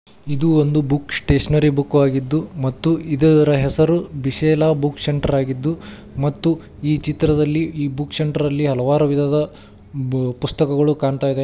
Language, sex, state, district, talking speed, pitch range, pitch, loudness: Kannada, male, Karnataka, Koppal, 135 wpm, 140-155 Hz, 145 Hz, -18 LUFS